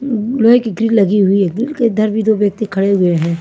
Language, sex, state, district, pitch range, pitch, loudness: Hindi, female, Maharashtra, Mumbai Suburban, 195-230 Hz, 215 Hz, -14 LUFS